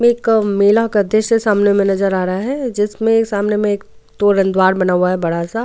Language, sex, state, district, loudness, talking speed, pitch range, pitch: Hindi, female, Goa, North and South Goa, -15 LUFS, 210 wpm, 195-225 Hz, 205 Hz